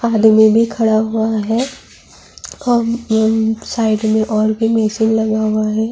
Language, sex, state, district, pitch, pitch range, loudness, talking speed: Urdu, female, Bihar, Saharsa, 220 Hz, 220-225 Hz, -15 LUFS, 120 wpm